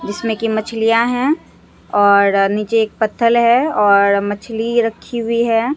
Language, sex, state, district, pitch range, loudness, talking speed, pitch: Hindi, female, Bihar, Katihar, 205-235 Hz, -15 LUFS, 145 wpm, 225 Hz